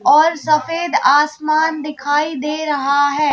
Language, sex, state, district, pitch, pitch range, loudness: Hindi, female, Madhya Pradesh, Bhopal, 300 Hz, 295-315 Hz, -16 LUFS